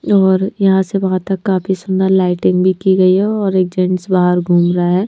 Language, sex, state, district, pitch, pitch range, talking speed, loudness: Hindi, female, Punjab, Pathankot, 190 Hz, 185-190 Hz, 225 wpm, -14 LUFS